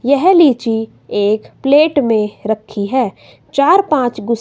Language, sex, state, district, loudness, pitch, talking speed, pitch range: Hindi, female, Himachal Pradesh, Shimla, -14 LUFS, 245 Hz, 135 wpm, 220-285 Hz